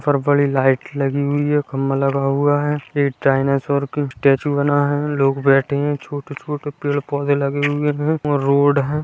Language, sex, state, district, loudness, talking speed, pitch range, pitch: Hindi, male, Uttar Pradesh, Hamirpur, -18 LUFS, 190 wpm, 140-145 Hz, 145 Hz